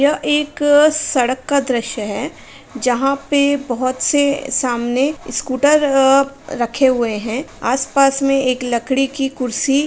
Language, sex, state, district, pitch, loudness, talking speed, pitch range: Hindi, female, Uttar Pradesh, Varanasi, 270 Hz, -16 LUFS, 140 wpm, 250-285 Hz